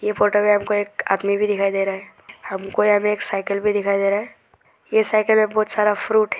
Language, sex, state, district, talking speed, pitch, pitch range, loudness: Hindi, male, Arunachal Pradesh, Lower Dibang Valley, 260 wpm, 205 Hz, 200-210 Hz, -20 LUFS